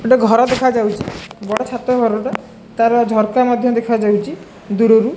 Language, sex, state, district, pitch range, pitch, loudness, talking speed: Odia, male, Odisha, Khordha, 215-245 Hz, 230 Hz, -15 LUFS, 130 wpm